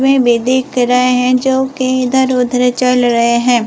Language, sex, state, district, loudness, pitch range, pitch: Hindi, female, Himachal Pradesh, Shimla, -12 LUFS, 245-260 Hz, 250 Hz